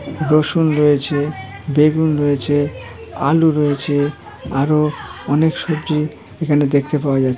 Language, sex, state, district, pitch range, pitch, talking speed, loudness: Bengali, female, West Bengal, Malda, 140-155 Hz, 145 Hz, 90 wpm, -17 LUFS